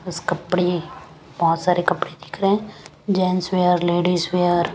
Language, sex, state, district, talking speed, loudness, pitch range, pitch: Hindi, female, Punjab, Kapurthala, 165 wpm, -21 LUFS, 175-185 Hz, 180 Hz